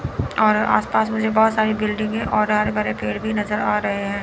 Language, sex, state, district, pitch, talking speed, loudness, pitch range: Hindi, female, Chandigarh, Chandigarh, 210 Hz, 225 wpm, -20 LUFS, 200-215 Hz